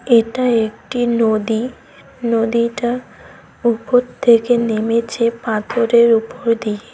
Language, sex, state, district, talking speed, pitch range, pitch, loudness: Bengali, female, West Bengal, Cooch Behar, 85 wpm, 225-240 Hz, 235 Hz, -17 LUFS